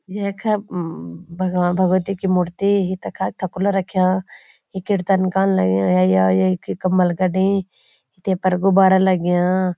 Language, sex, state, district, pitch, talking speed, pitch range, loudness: Garhwali, female, Uttarakhand, Uttarkashi, 185 Hz, 125 wpm, 175-195 Hz, -19 LUFS